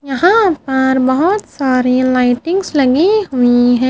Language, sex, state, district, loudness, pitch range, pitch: Hindi, female, Haryana, Charkhi Dadri, -13 LUFS, 255-350 Hz, 265 Hz